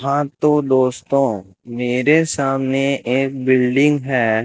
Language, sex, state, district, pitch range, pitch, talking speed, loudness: Hindi, male, Rajasthan, Bikaner, 125-140 Hz, 135 Hz, 110 wpm, -17 LUFS